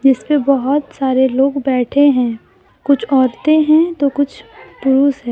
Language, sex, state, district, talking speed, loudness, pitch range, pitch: Hindi, female, Jharkhand, Deoghar, 145 wpm, -14 LUFS, 260-285 Hz, 275 Hz